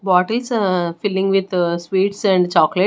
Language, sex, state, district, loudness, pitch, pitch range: English, female, Haryana, Rohtak, -18 LUFS, 190 Hz, 180-195 Hz